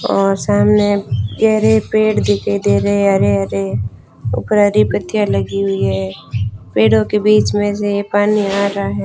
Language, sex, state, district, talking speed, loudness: Hindi, female, Rajasthan, Bikaner, 165 wpm, -15 LUFS